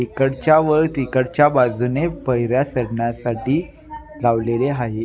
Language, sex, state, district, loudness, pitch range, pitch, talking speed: Marathi, male, Maharashtra, Nagpur, -19 LUFS, 120-150 Hz, 130 Hz, 95 wpm